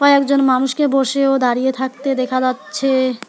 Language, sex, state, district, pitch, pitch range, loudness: Bengali, female, West Bengal, Alipurduar, 265 Hz, 255-275 Hz, -16 LUFS